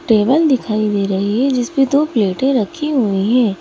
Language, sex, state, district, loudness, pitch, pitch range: Hindi, female, Madhya Pradesh, Bhopal, -15 LUFS, 240 Hz, 210-270 Hz